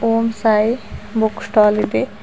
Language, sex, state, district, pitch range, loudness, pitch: Kannada, female, Karnataka, Bidar, 215-230 Hz, -17 LUFS, 220 Hz